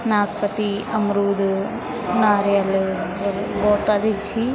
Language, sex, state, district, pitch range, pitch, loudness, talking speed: Garhwali, female, Uttarakhand, Tehri Garhwal, 200-215 Hz, 205 Hz, -20 LUFS, 80 wpm